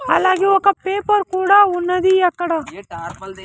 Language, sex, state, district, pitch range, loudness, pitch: Telugu, male, Andhra Pradesh, Sri Satya Sai, 320-390 Hz, -16 LUFS, 370 Hz